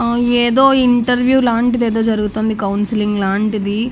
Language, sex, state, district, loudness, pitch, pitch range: Telugu, female, Andhra Pradesh, Annamaya, -15 LUFS, 230 Hz, 210-245 Hz